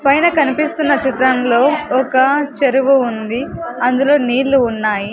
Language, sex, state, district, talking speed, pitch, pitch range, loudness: Telugu, female, Andhra Pradesh, Sri Satya Sai, 105 wpm, 265 Hz, 245-290 Hz, -14 LUFS